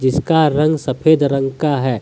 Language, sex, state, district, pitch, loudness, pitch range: Hindi, male, Jharkhand, Deoghar, 145 Hz, -15 LUFS, 130-155 Hz